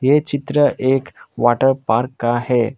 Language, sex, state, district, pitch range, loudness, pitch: Hindi, male, Assam, Kamrup Metropolitan, 120-140 Hz, -17 LUFS, 130 Hz